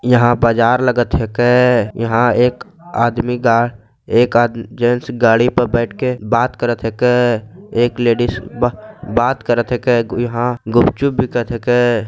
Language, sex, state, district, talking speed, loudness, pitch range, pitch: Angika, male, Bihar, Begusarai, 125 wpm, -15 LUFS, 115-125 Hz, 120 Hz